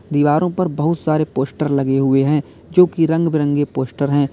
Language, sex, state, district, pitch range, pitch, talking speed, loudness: Hindi, male, Uttar Pradesh, Lalitpur, 140-160 Hz, 150 Hz, 195 wpm, -17 LUFS